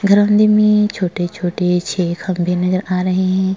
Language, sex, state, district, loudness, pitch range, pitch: Hindi, female, Uttar Pradesh, Jalaun, -16 LUFS, 180-200 Hz, 185 Hz